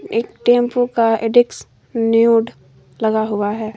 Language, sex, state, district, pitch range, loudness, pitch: Hindi, female, Jharkhand, Garhwa, 220-240 Hz, -16 LUFS, 225 Hz